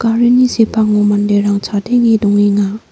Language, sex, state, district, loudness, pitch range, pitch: Garo, female, Meghalaya, North Garo Hills, -12 LUFS, 205-230 Hz, 210 Hz